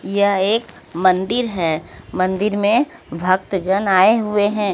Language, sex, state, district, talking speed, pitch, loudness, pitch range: Hindi, female, Haryana, Jhajjar, 140 wpm, 200 Hz, -18 LUFS, 185-210 Hz